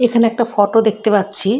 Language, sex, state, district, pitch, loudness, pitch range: Bengali, female, West Bengal, Malda, 220 Hz, -15 LUFS, 205-235 Hz